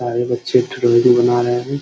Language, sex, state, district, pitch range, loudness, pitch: Hindi, male, Bihar, Muzaffarpur, 120-125 Hz, -15 LUFS, 120 Hz